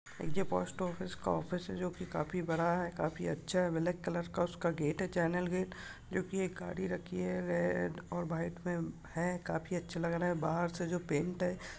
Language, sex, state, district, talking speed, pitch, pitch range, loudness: Hindi, male, Chhattisgarh, Bastar, 220 wpm, 175 Hz, 165-180 Hz, -37 LUFS